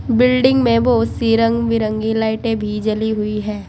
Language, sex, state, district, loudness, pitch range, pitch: Hindi, female, Uttar Pradesh, Saharanpur, -17 LUFS, 215-235 Hz, 225 Hz